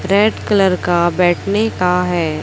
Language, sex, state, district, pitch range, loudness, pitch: Hindi, female, Chhattisgarh, Raipur, 175-200 Hz, -15 LUFS, 180 Hz